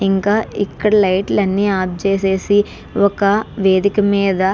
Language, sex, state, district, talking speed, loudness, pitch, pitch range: Telugu, female, Andhra Pradesh, Krishna, 130 wpm, -16 LUFS, 200 Hz, 190-205 Hz